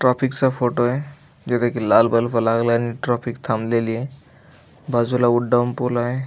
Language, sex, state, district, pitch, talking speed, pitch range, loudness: Marathi, male, Maharashtra, Aurangabad, 120 Hz, 135 wpm, 115-125 Hz, -20 LUFS